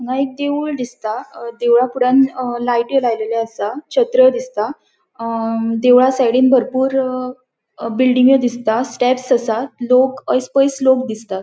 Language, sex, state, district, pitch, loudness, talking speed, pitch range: Konkani, female, Goa, North and South Goa, 255 Hz, -16 LUFS, 125 wpm, 235-265 Hz